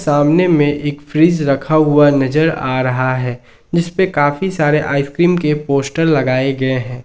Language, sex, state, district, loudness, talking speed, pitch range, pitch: Hindi, male, Jharkhand, Ranchi, -14 LUFS, 160 wpm, 135-155 Hz, 145 Hz